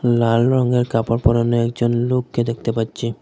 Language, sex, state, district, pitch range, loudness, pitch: Bengali, male, Assam, Hailakandi, 115-125 Hz, -18 LUFS, 120 Hz